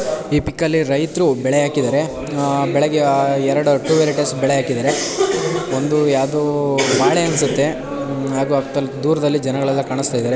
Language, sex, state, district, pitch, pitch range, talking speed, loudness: Kannada, male, Karnataka, Chamarajanagar, 140 Hz, 135-150 Hz, 150 wpm, -17 LUFS